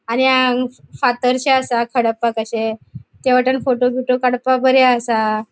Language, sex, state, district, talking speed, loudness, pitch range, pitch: Konkani, female, Goa, North and South Goa, 130 wpm, -16 LUFS, 235-255 Hz, 250 Hz